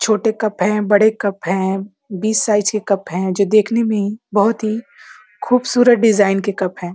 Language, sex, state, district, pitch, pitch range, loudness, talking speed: Hindi, female, Uttar Pradesh, Ghazipur, 210 Hz, 195-220 Hz, -16 LUFS, 180 wpm